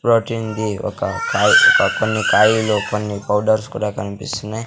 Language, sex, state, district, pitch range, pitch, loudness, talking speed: Telugu, male, Andhra Pradesh, Sri Satya Sai, 105-115 Hz, 110 Hz, -17 LUFS, 140 wpm